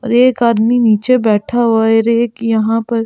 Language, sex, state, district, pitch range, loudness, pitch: Hindi, female, Delhi, New Delhi, 225-240 Hz, -13 LUFS, 230 Hz